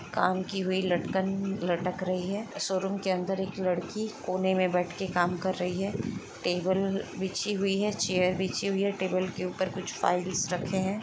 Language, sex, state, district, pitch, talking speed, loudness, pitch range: Hindi, female, Chhattisgarh, Sukma, 190 Hz, 165 wpm, -30 LUFS, 180-195 Hz